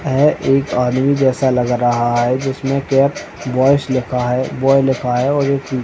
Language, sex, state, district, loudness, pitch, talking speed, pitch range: Hindi, male, Uttar Pradesh, Etah, -16 LUFS, 130 Hz, 175 wpm, 125-135 Hz